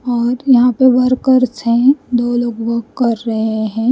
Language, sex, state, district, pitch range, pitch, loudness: Hindi, female, Haryana, Rohtak, 235-255 Hz, 240 Hz, -14 LUFS